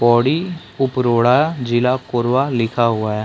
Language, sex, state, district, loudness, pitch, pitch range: Hindi, male, Chhattisgarh, Korba, -17 LUFS, 125 Hz, 120-135 Hz